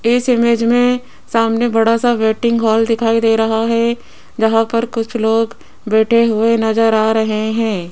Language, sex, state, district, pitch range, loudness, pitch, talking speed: Hindi, female, Rajasthan, Jaipur, 220-230 Hz, -15 LUFS, 225 Hz, 165 wpm